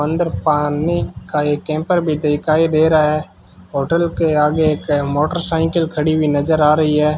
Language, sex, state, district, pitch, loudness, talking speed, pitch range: Hindi, male, Rajasthan, Bikaner, 155 Hz, -16 LUFS, 175 wpm, 150-160 Hz